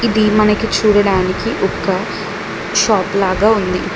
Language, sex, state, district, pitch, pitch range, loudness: Telugu, female, Telangana, Mahabubabad, 210 Hz, 190-215 Hz, -15 LUFS